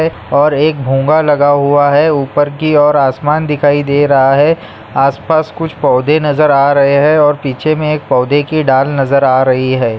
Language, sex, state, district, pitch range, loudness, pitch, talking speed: Hindi, male, Maharashtra, Aurangabad, 135-150 Hz, -11 LUFS, 145 Hz, 190 wpm